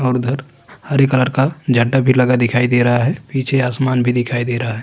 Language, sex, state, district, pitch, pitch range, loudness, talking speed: Hindi, male, Uttarakhand, Tehri Garhwal, 125 Hz, 120-135 Hz, -16 LUFS, 235 wpm